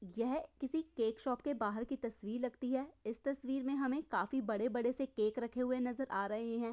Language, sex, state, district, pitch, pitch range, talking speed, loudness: Hindi, female, Uttar Pradesh, Hamirpur, 250 Hz, 230-270 Hz, 215 wpm, -39 LUFS